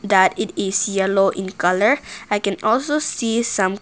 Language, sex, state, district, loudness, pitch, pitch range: English, female, Nagaland, Kohima, -19 LUFS, 200 Hz, 190-225 Hz